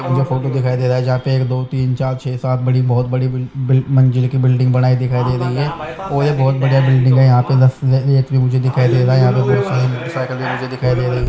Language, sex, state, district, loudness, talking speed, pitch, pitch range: Hindi, male, Haryana, Charkhi Dadri, -15 LUFS, 190 wpm, 130 Hz, 125-130 Hz